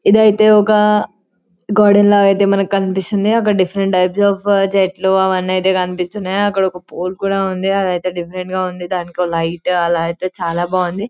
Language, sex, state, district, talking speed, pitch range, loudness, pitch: Telugu, female, Telangana, Karimnagar, 160 wpm, 180-200 Hz, -15 LUFS, 190 Hz